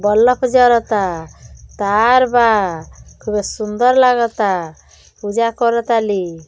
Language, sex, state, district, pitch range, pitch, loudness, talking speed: Bhojpuri, male, Uttar Pradesh, Deoria, 200-235 Hz, 220 Hz, -15 LUFS, 95 wpm